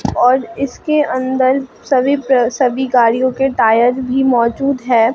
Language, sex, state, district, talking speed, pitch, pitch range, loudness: Hindi, female, Bihar, Katihar, 140 wpm, 260 Hz, 245-270 Hz, -14 LUFS